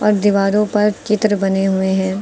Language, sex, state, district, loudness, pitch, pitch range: Hindi, female, Uttar Pradesh, Lucknow, -16 LUFS, 200 Hz, 195-210 Hz